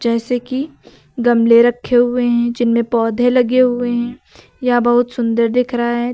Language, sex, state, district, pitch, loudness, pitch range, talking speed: Hindi, female, Uttar Pradesh, Lucknow, 240 Hz, -15 LUFS, 235-245 Hz, 165 wpm